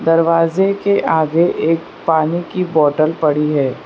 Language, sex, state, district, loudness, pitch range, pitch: Hindi, female, Gujarat, Valsad, -15 LUFS, 155-170 Hz, 165 Hz